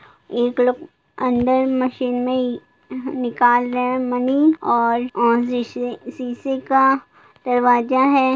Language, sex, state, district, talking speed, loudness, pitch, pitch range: Hindi, female, Bihar, Gopalganj, 115 wpm, -19 LUFS, 250 Hz, 245-260 Hz